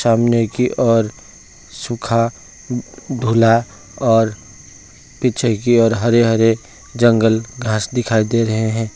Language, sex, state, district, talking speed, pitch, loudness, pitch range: Hindi, male, West Bengal, Alipurduar, 115 wpm, 115 Hz, -16 LUFS, 110-120 Hz